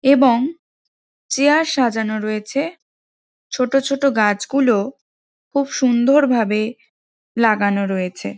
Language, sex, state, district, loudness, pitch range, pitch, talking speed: Bengali, female, West Bengal, Jhargram, -18 LUFS, 215-275 Hz, 250 Hz, 95 wpm